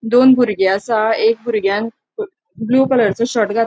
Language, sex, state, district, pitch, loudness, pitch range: Konkani, female, Goa, North and South Goa, 230 Hz, -15 LUFS, 215-245 Hz